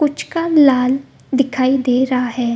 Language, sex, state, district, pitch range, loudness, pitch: Hindi, female, Bihar, Gopalganj, 250-280 Hz, -16 LUFS, 260 Hz